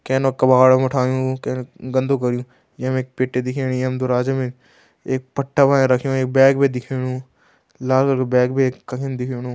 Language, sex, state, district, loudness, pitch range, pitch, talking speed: Garhwali, male, Uttarakhand, Tehri Garhwal, -19 LUFS, 125-135 Hz, 130 Hz, 190 wpm